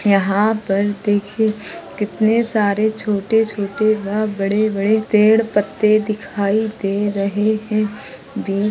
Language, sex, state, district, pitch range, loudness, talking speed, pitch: Hindi, female, Maharashtra, Nagpur, 205-215 Hz, -18 LUFS, 95 wpm, 210 Hz